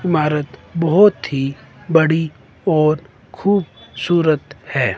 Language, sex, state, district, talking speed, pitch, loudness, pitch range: Hindi, male, Himachal Pradesh, Shimla, 95 wpm, 155 Hz, -18 LUFS, 135-165 Hz